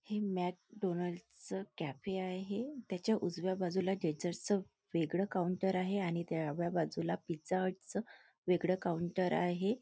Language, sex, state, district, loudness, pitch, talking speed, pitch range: Marathi, female, Maharashtra, Nagpur, -37 LUFS, 185 Hz, 120 wpm, 175-195 Hz